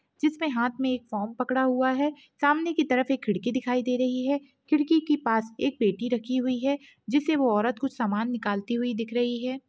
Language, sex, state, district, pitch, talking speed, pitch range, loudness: Hindi, female, Uttarakhand, Tehri Garhwal, 255 Hz, 215 wpm, 240-280 Hz, -27 LUFS